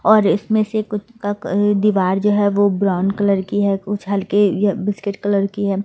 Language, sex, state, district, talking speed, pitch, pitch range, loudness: Hindi, female, Delhi, New Delhi, 205 wpm, 205 Hz, 200-205 Hz, -18 LUFS